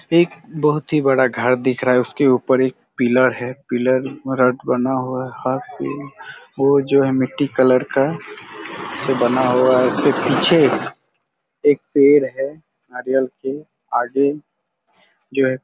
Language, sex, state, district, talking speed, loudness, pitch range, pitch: Hindi, male, Chhattisgarh, Raigarh, 150 wpm, -18 LUFS, 125-140 Hz, 130 Hz